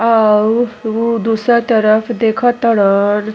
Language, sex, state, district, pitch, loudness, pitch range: Bhojpuri, female, Uttar Pradesh, Ghazipur, 225 Hz, -13 LUFS, 215-235 Hz